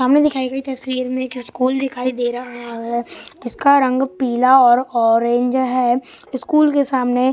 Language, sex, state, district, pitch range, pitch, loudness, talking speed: Hindi, male, Bihar, West Champaran, 245-265 Hz, 255 Hz, -17 LUFS, 170 wpm